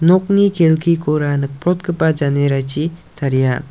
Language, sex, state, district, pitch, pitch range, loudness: Garo, male, Meghalaya, South Garo Hills, 155 Hz, 140-170 Hz, -16 LUFS